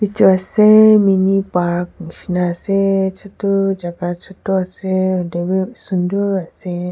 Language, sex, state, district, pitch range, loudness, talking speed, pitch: Nagamese, female, Nagaland, Kohima, 180-195 Hz, -16 LUFS, 115 wpm, 190 Hz